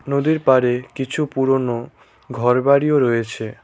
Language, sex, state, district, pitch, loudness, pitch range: Bengali, male, West Bengal, Cooch Behar, 130 Hz, -18 LUFS, 120-140 Hz